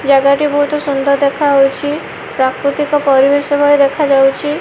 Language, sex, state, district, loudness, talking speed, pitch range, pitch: Odia, female, Odisha, Malkangiri, -12 LUFS, 115 wpm, 275-290 Hz, 280 Hz